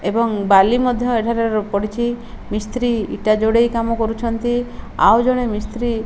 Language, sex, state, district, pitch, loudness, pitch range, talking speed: Odia, female, Odisha, Malkangiri, 230 Hz, -18 LUFS, 215-240 Hz, 140 wpm